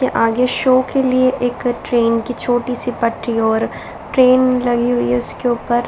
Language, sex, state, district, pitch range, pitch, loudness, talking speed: Hindi, female, Bihar, Darbhanga, 230-255 Hz, 245 Hz, -16 LUFS, 185 wpm